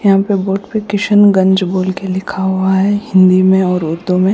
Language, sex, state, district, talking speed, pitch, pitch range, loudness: Hindi, female, Bihar, Kishanganj, 220 wpm, 190 Hz, 185-200 Hz, -13 LUFS